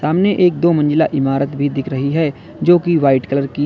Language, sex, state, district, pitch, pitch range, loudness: Hindi, male, Uttar Pradesh, Lalitpur, 145 Hz, 140-170 Hz, -15 LUFS